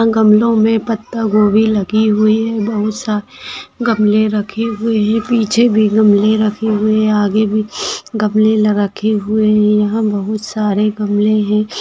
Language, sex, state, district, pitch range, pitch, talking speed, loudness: Hindi, female, Maharashtra, Pune, 210-220 Hz, 215 Hz, 160 wpm, -14 LUFS